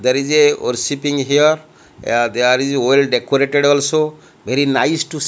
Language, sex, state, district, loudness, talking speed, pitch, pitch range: English, male, Odisha, Malkangiri, -15 LUFS, 170 wpm, 140 Hz, 130-150 Hz